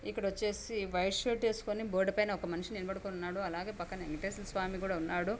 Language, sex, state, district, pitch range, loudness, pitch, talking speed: Telugu, female, Andhra Pradesh, Anantapur, 185-210 Hz, -36 LUFS, 195 Hz, 190 wpm